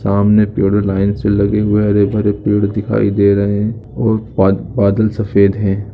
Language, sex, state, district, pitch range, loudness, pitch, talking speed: Hindi, male, Uttar Pradesh, Muzaffarnagar, 100-105 Hz, -14 LUFS, 105 Hz, 170 wpm